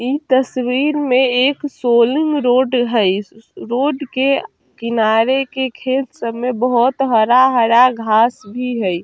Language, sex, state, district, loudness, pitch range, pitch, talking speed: Bajjika, female, Bihar, Vaishali, -16 LUFS, 235-265 Hz, 250 Hz, 125 wpm